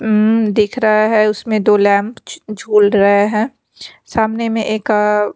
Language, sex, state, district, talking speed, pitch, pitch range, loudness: Hindi, female, Chhattisgarh, Raipur, 155 wpm, 215 Hz, 210-220 Hz, -14 LUFS